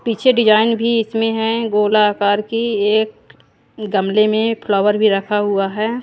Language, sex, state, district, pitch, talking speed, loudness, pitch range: Hindi, female, Haryana, Jhajjar, 215 Hz, 150 wpm, -16 LUFS, 210-225 Hz